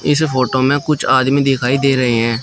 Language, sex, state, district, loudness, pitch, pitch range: Hindi, male, Uttar Pradesh, Shamli, -14 LUFS, 130 Hz, 130-140 Hz